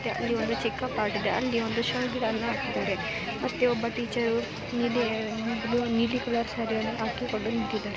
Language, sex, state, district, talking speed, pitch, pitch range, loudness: Kannada, female, Karnataka, Mysore, 130 wpm, 235 Hz, 225-240 Hz, -29 LUFS